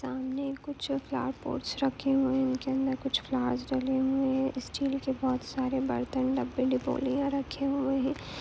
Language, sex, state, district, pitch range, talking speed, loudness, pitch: Hindi, female, Chhattisgarh, Korba, 260-275 Hz, 170 wpm, -30 LUFS, 265 Hz